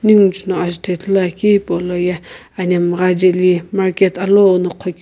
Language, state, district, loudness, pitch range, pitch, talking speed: Sumi, Nagaland, Kohima, -15 LUFS, 180-195 Hz, 185 Hz, 165 wpm